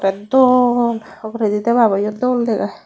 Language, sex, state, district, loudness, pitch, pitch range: Chakma, female, Tripura, Unakoti, -16 LUFS, 230 Hz, 210-245 Hz